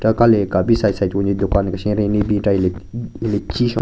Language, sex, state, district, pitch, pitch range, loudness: Rengma, male, Nagaland, Kohima, 105 Hz, 100-110 Hz, -18 LUFS